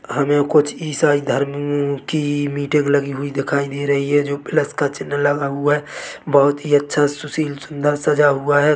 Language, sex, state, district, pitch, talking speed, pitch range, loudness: Hindi, male, Chhattisgarh, Bilaspur, 145 Hz, 190 wpm, 140-145 Hz, -18 LUFS